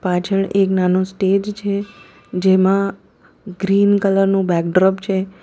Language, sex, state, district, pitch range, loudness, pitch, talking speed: Gujarati, female, Gujarat, Valsad, 185-195 Hz, -17 LUFS, 195 Hz, 130 wpm